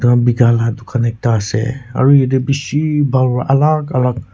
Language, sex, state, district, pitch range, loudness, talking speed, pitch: Nagamese, male, Nagaland, Kohima, 120-140 Hz, -14 LUFS, 180 wpm, 125 Hz